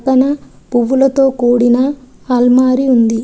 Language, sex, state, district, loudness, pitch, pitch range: Telugu, female, Telangana, Adilabad, -12 LUFS, 255 Hz, 240-265 Hz